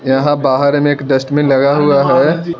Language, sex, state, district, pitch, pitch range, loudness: Hindi, male, Arunachal Pradesh, Lower Dibang Valley, 140 Hz, 135-145 Hz, -12 LUFS